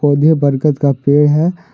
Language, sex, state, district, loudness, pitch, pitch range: Hindi, male, Jharkhand, Deoghar, -13 LUFS, 145 Hz, 140-155 Hz